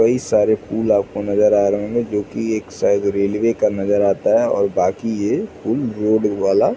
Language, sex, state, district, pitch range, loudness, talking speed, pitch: Hindi, male, Chhattisgarh, Raigarh, 100-110 Hz, -18 LUFS, 215 wpm, 105 Hz